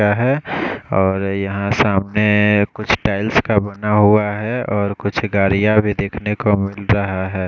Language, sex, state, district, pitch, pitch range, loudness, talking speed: Hindi, male, Odisha, Khordha, 105 Hz, 100-105 Hz, -17 LUFS, 160 wpm